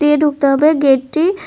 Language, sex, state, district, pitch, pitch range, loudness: Bengali, female, Tripura, West Tripura, 295 Hz, 280-310 Hz, -13 LUFS